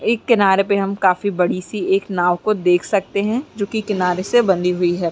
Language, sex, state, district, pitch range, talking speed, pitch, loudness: Hindi, female, Uttarakhand, Uttarkashi, 180-210 Hz, 235 wpm, 195 Hz, -18 LUFS